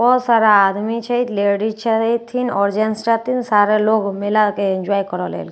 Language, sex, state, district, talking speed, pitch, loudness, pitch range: Maithili, female, Bihar, Katihar, 205 wpm, 215 Hz, -17 LUFS, 200-230 Hz